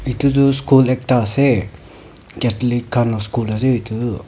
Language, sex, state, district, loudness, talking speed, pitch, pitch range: Nagamese, female, Nagaland, Kohima, -16 LUFS, 140 wpm, 120 Hz, 110-130 Hz